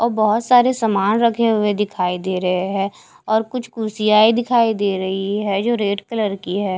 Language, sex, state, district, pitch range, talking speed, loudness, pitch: Hindi, female, Haryana, Charkhi Dadri, 195-230 Hz, 195 wpm, -18 LUFS, 210 Hz